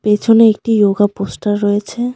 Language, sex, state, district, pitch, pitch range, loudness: Bengali, female, West Bengal, Alipurduar, 210 Hz, 205-225 Hz, -13 LUFS